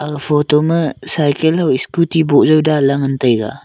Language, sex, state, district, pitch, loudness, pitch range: Wancho, male, Arunachal Pradesh, Longding, 150 Hz, -14 LUFS, 140-160 Hz